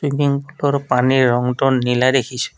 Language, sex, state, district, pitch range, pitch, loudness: Assamese, male, Assam, Kamrup Metropolitan, 125-140 Hz, 130 Hz, -17 LUFS